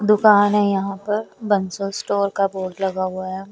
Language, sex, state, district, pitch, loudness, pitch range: Hindi, female, Chandigarh, Chandigarh, 195 Hz, -20 LUFS, 190-205 Hz